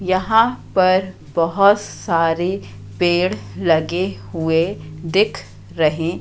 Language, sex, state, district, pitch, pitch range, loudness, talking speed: Hindi, female, Madhya Pradesh, Katni, 170 Hz, 160-185 Hz, -18 LUFS, 85 wpm